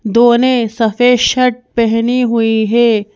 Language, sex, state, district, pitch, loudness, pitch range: Hindi, female, Madhya Pradesh, Bhopal, 235 Hz, -12 LUFS, 225-245 Hz